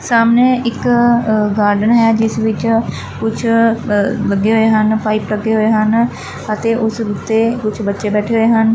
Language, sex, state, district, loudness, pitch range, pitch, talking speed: Punjabi, female, Punjab, Fazilka, -14 LUFS, 215-230 Hz, 220 Hz, 160 wpm